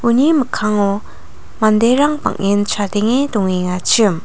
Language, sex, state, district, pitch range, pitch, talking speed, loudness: Garo, female, Meghalaya, North Garo Hills, 200-245 Hz, 215 Hz, 85 wpm, -15 LUFS